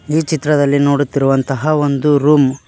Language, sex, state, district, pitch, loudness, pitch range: Kannada, male, Karnataka, Koppal, 145 Hz, -14 LUFS, 140-150 Hz